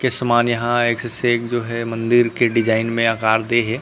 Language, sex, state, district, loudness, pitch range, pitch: Chhattisgarhi, male, Chhattisgarh, Rajnandgaon, -18 LUFS, 115-120 Hz, 120 Hz